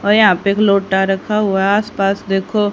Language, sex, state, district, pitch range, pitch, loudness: Hindi, female, Haryana, Rohtak, 195-210 Hz, 200 Hz, -15 LUFS